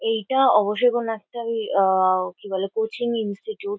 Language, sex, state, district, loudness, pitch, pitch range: Bengali, female, West Bengal, Kolkata, -22 LUFS, 225 Hz, 195-240 Hz